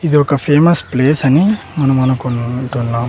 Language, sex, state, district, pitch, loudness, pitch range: Telugu, male, Andhra Pradesh, Sri Satya Sai, 135 Hz, -14 LUFS, 130-150 Hz